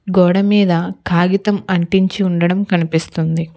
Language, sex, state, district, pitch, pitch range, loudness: Telugu, female, Telangana, Hyderabad, 180 Hz, 170-195 Hz, -15 LUFS